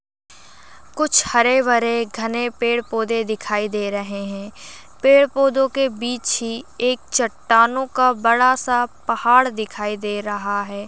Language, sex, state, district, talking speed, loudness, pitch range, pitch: Hindi, female, Uttar Pradesh, Gorakhpur, 140 wpm, -19 LUFS, 210-255 Hz, 235 Hz